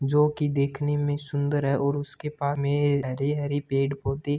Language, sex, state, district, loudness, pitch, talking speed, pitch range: Hindi, male, Rajasthan, Churu, -26 LUFS, 145 Hz, 180 wpm, 140-145 Hz